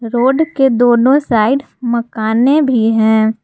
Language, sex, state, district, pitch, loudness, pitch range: Hindi, female, Jharkhand, Garhwa, 240 Hz, -13 LUFS, 225-270 Hz